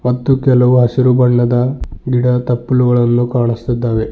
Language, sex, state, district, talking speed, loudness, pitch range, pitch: Kannada, male, Karnataka, Bidar, 100 wpm, -13 LUFS, 120-125 Hz, 125 Hz